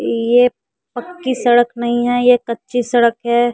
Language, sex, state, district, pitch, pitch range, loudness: Hindi, female, Bihar, West Champaran, 240 Hz, 235-245 Hz, -15 LUFS